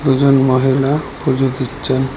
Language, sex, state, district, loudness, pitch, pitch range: Bengali, male, Assam, Hailakandi, -15 LUFS, 135 Hz, 130-135 Hz